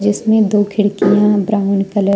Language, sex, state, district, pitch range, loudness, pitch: Hindi, female, Jharkhand, Deoghar, 200-210 Hz, -14 LUFS, 205 Hz